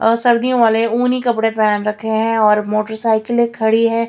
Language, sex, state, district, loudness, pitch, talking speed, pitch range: Hindi, female, Bihar, Katihar, -15 LUFS, 225 Hz, 175 wpm, 220-235 Hz